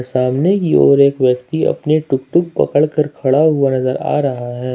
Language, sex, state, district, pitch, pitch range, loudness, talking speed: Hindi, male, Jharkhand, Ranchi, 140 Hz, 130-155 Hz, -15 LUFS, 190 wpm